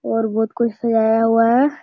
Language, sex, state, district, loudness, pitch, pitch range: Hindi, male, Bihar, Jamui, -17 LUFS, 225 Hz, 225-235 Hz